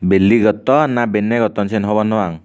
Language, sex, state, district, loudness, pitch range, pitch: Chakma, male, Tripura, Unakoti, -15 LUFS, 105-115 Hz, 105 Hz